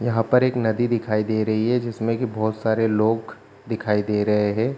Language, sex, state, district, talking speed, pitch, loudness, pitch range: Hindi, male, Bihar, Kishanganj, 215 wpm, 110 Hz, -22 LUFS, 110-115 Hz